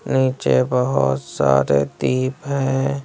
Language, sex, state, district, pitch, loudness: Hindi, male, Bihar, West Champaran, 130 Hz, -19 LUFS